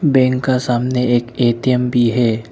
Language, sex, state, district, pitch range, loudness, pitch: Hindi, male, Arunachal Pradesh, Lower Dibang Valley, 120-130 Hz, -16 LUFS, 125 Hz